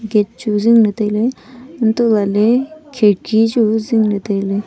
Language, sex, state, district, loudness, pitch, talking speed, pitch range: Wancho, female, Arunachal Pradesh, Longding, -15 LUFS, 220 Hz, 155 wpm, 210-240 Hz